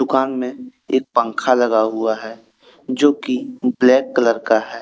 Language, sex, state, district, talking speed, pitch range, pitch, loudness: Hindi, male, Jharkhand, Deoghar, 160 wpm, 115-145 Hz, 125 Hz, -18 LUFS